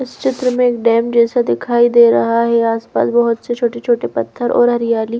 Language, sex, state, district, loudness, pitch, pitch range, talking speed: Hindi, female, Bihar, Katihar, -14 LUFS, 235 Hz, 230-240 Hz, 210 wpm